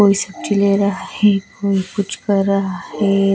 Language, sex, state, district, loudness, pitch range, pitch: Hindi, female, Bihar, West Champaran, -17 LUFS, 195-200 Hz, 200 Hz